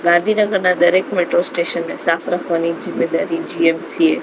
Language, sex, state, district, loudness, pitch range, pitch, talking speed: Gujarati, female, Gujarat, Gandhinagar, -17 LUFS, 170-210 Hz, 175 Hz, 140 wpm